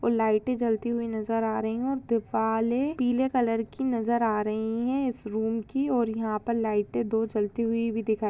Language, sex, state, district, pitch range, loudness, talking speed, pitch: Hindi, female, Goa, North and South Goa, 220-240 Hz, -27 LUFS, 215 wpm, 225 Hz